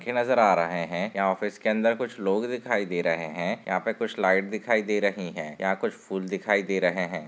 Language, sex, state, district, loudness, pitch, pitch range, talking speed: Hindi, male, Jharkhand, Sahebganj, -26 LUFS, 100 Hz, 95-110 Hz, 240 wpm